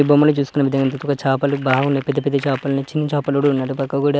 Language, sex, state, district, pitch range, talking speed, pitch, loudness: Telugu, male, Andhra Pradesh, Srikakulam, 135-145 Hz, 215 wpm, 140 Hz, -19 LUFS